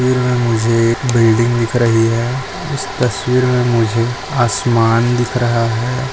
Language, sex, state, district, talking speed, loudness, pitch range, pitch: Hindi, male, Goa, North and South Goa, 155 wpm, -15 LUFS, 115-125 Hz, 120 Hz